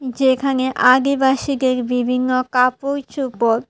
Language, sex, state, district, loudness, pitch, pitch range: Bengali, female, Tripura, West Tripura, -17 LUFS, 260 Hz, 250-270 Hz